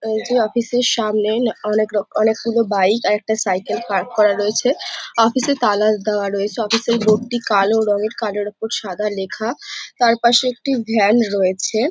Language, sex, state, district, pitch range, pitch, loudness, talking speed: Bengali, female, West Bengal, Jhargram, 210-235 Hz, 220 Hz, -18 LUFS, 175 wpm